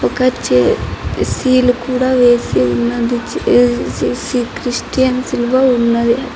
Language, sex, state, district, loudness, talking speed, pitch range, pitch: Telugu, female, Andhra Pradesh, Anantapur, -14 LUFS, 75 wpm, 235-255 Hz, 245 Hz